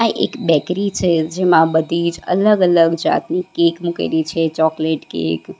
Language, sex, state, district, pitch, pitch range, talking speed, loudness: Gujarati, female, Gujarat, Valsad, 165 Hz, 160-180 Hz, 150 wpm, -17 LUFS